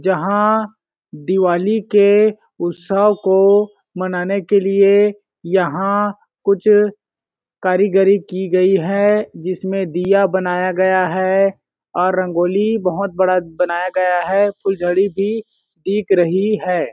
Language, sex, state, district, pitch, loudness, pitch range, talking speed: Hindi, male, Chhattisgarh, Balrampur, 195 Hz, -16 LUFS, 185-205 Hz, 115 wpm